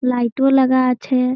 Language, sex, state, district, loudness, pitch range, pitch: Bengali, female, West Bengal, Malda, -16 LUFS, 250-260 Hz, 255 Hz